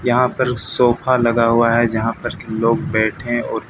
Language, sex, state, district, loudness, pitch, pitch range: Hindi, male, Bihar, Katihar, -17 LUFS, 115 Hz, 115-125 Hz